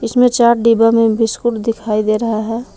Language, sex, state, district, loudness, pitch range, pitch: Hindi, female, Jharkhand, Palamu, -14 LUFS, 220-235 Hz, 230 Hz